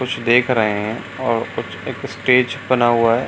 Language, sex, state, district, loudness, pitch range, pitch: Hindi, male, Bihar, Supaul, -18 LUFS, 115-125 Hz, 120 Hz